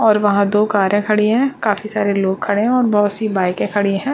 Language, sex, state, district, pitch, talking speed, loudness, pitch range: Hindi, female, Chhattisgarh, Bastar, 210 Hz, 230 wpm, -16 LUFS, 200-215 Hz